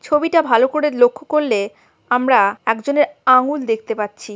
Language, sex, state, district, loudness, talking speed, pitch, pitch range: Bengali, female, West Bengal, Kolkata, -16 LUFS, 140 wpm, 255 Hz, 225-295 Hz